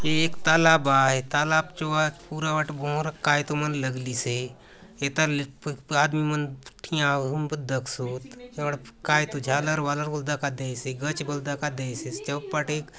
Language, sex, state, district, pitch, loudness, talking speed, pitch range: Halbi, male, Chhattisgarh, Bastar, 145 Hz, -26 LUFS, 155 wpm, 135-155 Hz